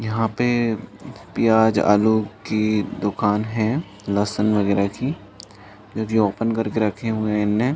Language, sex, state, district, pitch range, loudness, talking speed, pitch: Hindi, male, Chhattisgarh, Balrampur, 105-115 Hz, -21 LUFS, 145 wpm, 110 Hz